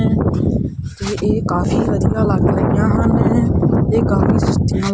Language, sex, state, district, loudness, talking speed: Punjabi, male, Punjab, Kapurthala, -16 LUFS, 120 wpm